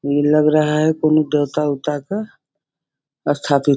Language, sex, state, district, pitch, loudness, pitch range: Hindi, female, Bihar, Sitamarhi, 150 Hz, -18 LUFS, 145-155 Hz